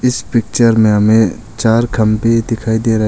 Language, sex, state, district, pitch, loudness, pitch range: Hindi, male, Arunachal Pradesh, Longding, 115 Hz, -13 LUFS, 110-115 Hz